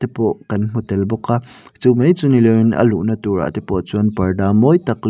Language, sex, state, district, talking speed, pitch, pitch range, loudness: Mizo, male, Mizoram, Aizawl, 260 wpm, 115 Hz, 105-120 Hz, -16 LUFS